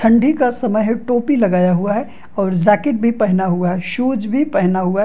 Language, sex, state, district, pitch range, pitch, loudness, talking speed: Hindi, male, Bihar, Madhepura, 190-245 Hz, 215 Hz, -16 LUFS, 225 wpm